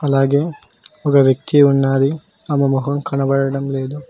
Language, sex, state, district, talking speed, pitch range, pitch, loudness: Telugu, male, Telangana, Mahabubabad, 115 wpm, 135-145 Hz, 140 Hz, -16 LUFS